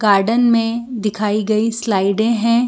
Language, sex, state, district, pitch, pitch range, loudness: Hindi, female, Jharkhand, Sahebganj, 225 Hz, 210-230 Hz, -17 LUFS